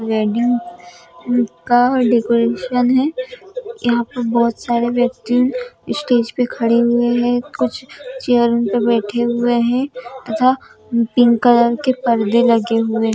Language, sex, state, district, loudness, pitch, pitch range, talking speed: Hindi, female, Bihar, Saharsa, -16 LUFS, 240 Hz, 235-250 Hz, 130 wpm